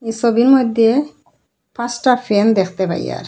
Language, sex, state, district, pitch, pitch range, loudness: Bengali, female, Assam, Hailakandi, 235 Hz, 215-250 Hz, -15 LUFS